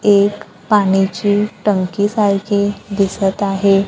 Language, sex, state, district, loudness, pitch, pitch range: Marathi, female, Maharashtra, Gondia, -16 LUFS, 200 Hz, 195-205 Hz